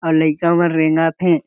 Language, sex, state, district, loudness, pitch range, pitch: Chhattisgarhi, male, Chhattisgarh, Jashpur, -16 LUFS, 160-170 Hz, 165 Hz